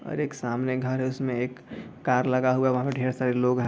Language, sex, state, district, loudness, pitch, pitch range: Hindi, male, Bihar, Sitamarhi, -26 LUFS, 130 Hz, 125-130 Hz